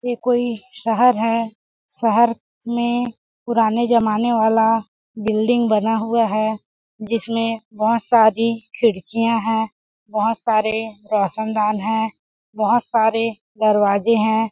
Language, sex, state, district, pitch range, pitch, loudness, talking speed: Hindi, female, Chhattisgarh, Balrampur, 215-230 Hz, 225 Hz, -19 LUFS, 105 wpm